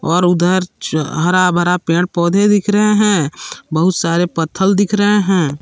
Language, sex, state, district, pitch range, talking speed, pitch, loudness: Hindi, male, Jharkhand, Palamu, 165-200 Hz, 170 wpm, 180 Hz, -14 LUFS